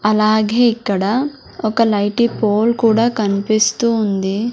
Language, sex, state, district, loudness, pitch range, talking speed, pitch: Telugu, female, Andhra Pradesh, Sri Satya Sai, -16 LUFS, 210-235 Hz, 105 wpm, 220 Hz